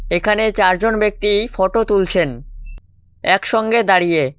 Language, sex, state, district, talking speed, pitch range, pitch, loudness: Bengali, male, West Bengal, Cooch Behar, 95 wpm, 170-215 Hz, 195 Hz, -16 LUFS